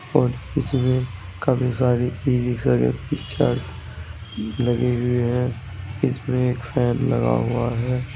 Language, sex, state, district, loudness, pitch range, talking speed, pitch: Hindi, male, Uttar Pradesh, Saharanpur, -22 LUFS, 105-125 Hz, 120 wpm, 120 Hz